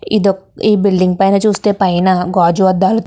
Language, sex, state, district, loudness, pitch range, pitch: Telugu, female, Andhra Pradesh, Krishna, -13 LUFS, 185-205 Hz, 190 Hz